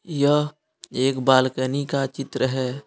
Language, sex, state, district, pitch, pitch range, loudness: Hindi, male, Jharkhand, Deoghar, 135 Hz, 130-145 Hz, -22 LUFS